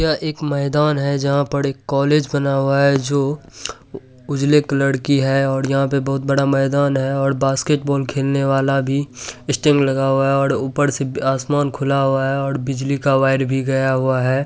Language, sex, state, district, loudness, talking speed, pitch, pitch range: Hindi, male, Bihar, Supaul, -18 LUFS, 190 wpm, 140 Hz, 135-140 Hz